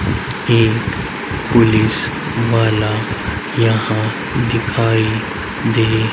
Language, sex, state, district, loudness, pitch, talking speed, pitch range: Hindi, male, Haryana, Rohtak, -16 LUFS, 110 Hz, 70 wpm, 105-115 Hz